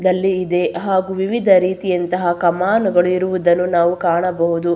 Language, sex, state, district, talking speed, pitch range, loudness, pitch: Kannada, female, Karnataka, Belgaum, 115 wpm, 175-190 Hz, -17 LUFS, 180 Hz